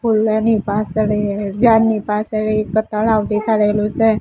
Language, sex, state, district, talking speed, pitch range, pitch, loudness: Gujarati, female, Gujarat, Gandhinagar, 145 wpm, 210-220 Hz, 215 Hz, -17 LUFS